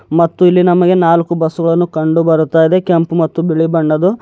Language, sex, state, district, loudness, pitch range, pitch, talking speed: Kannada, male, Karnataka, Bidar, -12 LUFS, 160-175 Hz, 165 Hz, 155 wpm